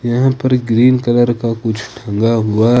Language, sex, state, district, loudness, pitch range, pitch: Hindi, male, Jharkhand, Ranchi, -14 LUFS, 115-125 Hz, 120 Hz